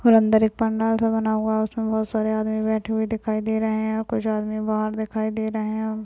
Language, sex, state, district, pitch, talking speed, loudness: Hindi, female, Bihar, Jahanabad, 220 Hz, 260 wpm, -23 LUFS